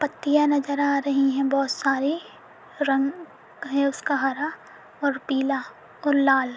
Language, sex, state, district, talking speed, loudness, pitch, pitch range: Hindi, female, Uttar Pradesh, Etah, 135 wpm, -24 LUFS, 280 Hz, 270-290 Hz